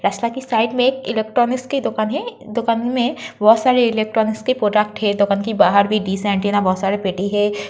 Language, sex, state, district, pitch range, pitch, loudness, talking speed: Hindi, female, Uttar Pradesh, Jyotiba Phule Nagar, 205-240 Hz, 220 Hz, -18 LUFS, 180 wpm